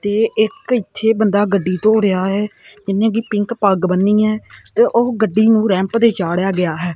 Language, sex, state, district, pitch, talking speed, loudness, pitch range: Punjabi, male, Punjab, Kapurthala, 210 Hz, 200 wpm, -16 LUFS, 195-220 Hz